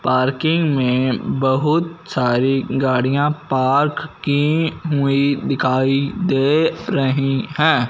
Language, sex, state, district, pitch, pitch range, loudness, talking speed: Hindi, male, Punjab, Fazilka, 140 Hz, 130-155 Hz, -18 LUFS, 90 wpm